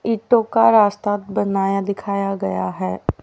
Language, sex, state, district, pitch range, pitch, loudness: Hindi, female, Haryana, Rohtak, 195-220 Hz, 200 Hz, -19 LUFS